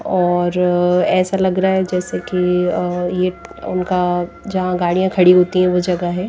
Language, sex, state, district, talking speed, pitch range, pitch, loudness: Hindi, female, Odisha, Nuapada, 170 wpm, 180-185 Hz, 180 Hz, -16 LUFS